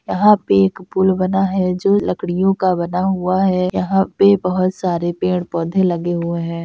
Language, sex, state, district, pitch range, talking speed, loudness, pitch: Hindi, female, Bihar, Kishanganj, 175-190 Hz, 180 wpm, -17 LUFS, 185 Hz